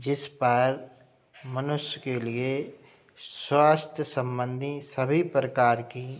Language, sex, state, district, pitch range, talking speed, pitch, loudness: Hindi, male, Uttar Pradesh, Budaun, 125-145 Hz, 105 wpm, 130 Hz, -27 LUFS